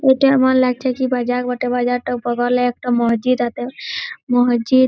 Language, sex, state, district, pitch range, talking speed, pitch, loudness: Bengali, female, West Bengal, Malda, 245-255 Hz, 185 wpm, 250 Hz, -18 LUFS